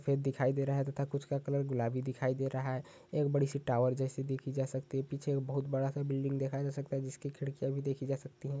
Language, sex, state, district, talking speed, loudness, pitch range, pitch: Hindi, male, Chhattisgarh, Sukma, 280 wpm, -36 LUFS, 135-140 Hz, 135 Hz